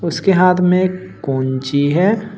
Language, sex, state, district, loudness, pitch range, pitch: Hindi, male, Uttar Pradesh, Shamli, -15 LUFS, 145-185 Hz, 180 Hz